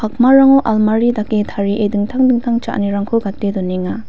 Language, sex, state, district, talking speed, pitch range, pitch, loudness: Garo, female, Meghalaya, West Garo Hills, 115 wpm, 205-235 Hz, 215 Hz, -14 LUFS